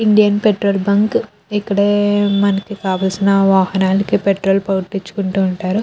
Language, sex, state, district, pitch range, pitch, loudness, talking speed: Telugu, female, Andhra Pradesh, Krishna, 195-205 Hz, 200 Hz, -15 LUFS, 95 wpm